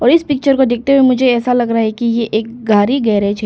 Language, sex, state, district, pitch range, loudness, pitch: Hindi, female, Arunachal Pradesh, Longding, 220-265 Hz, -13 LUFS, 240 Hz